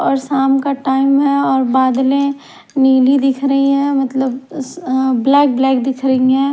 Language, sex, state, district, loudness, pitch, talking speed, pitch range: Hindi, female, Haryana, Charkhi Dadri, -14 LUFS, 270 Hz, 165 wpm, 265-275 Hz